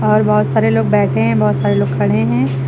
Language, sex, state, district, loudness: Hindi, female, Uttar Pradesh, Lucknow, -14 LUFS